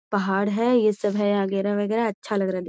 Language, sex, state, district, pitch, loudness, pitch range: Magahi, female, Bihar, Gaya, 205 Hz, -23 LUFS, 195-215 Hz